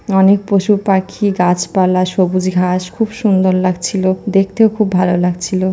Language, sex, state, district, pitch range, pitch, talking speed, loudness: Bengali, female, West Bengal, North 24 Parganas, 185-200 Hz, 185 Hz, 135 wpm, -14 LUFS